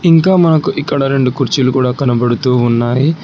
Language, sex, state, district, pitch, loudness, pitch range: Telugu, male, Telangana, Hyderabad, 135 Hz, -12 LUFS, 125-155 Hz